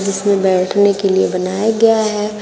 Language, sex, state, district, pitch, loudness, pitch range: Hindi, female, Uttar Pradesh, Shamli, 200 Hz, -14 LUFS, 190-210 Hz